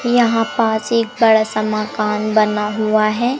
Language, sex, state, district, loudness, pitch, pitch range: Hindi, female, Madhya Pradesh, Umaria, -16 LUFS, 220 Hz, 215-230 Hz